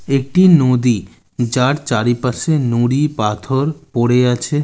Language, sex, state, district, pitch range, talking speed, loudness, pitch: Bengali, male, West Bengal, Jalpaiguri, 120-145 Hz, 105 wpm, -15 LUFS, 125 Hz